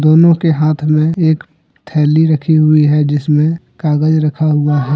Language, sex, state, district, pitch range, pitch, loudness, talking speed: Hindi, male, Jharkhand, Deoghar, 150-160 Hz, 155 Hz, -12 LUFS, 170 wpm